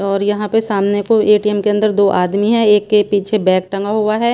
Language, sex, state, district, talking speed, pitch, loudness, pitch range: Hindi, female, Punjab, Pathankot, 250 wpm, 210 Hz, -14 LUFS, 200-215 Hz